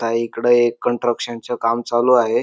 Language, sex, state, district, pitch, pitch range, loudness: Marathi, male, Maharashtra, Dhule, 120 Hz, 115-120 Hz, -18 LUFS